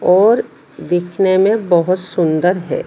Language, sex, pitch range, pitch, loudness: Hindi, female, 175-190 Hz, 180 Hz, -15 LUFS